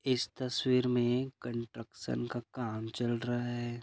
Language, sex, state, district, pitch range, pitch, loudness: Hindi, male, Goa, North and South Goa, 115-125 Hz, 120 Hz, -34 LUFS